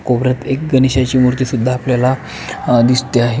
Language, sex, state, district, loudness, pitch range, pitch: Marathi, male, Maharashtra, Pune, -14 LUFS, 125-130 Hz, 130 Hz